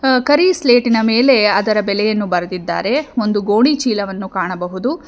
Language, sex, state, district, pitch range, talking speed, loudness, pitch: Kannada, female, Karnataka, Bangalore, 200-260 Hz, 105 wpm, -15 LUFS, 215 Hz